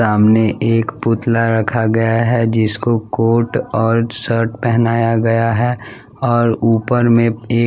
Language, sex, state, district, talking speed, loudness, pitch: Hindi, male, Bihar, West Champaran, 140 wpm, -15 LUFS, 115 Hz